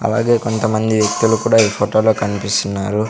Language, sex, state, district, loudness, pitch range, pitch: Telugu, male, Andhra Pradesh, Sri Satya Sai, -16 LUFS, 100-110 Hz, 110 Hz